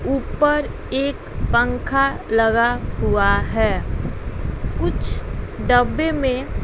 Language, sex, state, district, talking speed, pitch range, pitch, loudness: Hindi, female, Bihar, West Champaran, 80 wpm, 245-285 Hz, 270 Hz, -20 LUFS